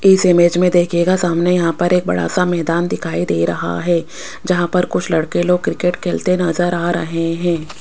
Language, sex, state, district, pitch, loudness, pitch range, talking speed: Hindi, female, Rajasthan, Jaipur, 175 Hz, -16 LUFS, 165-180 Hz, 200 wpm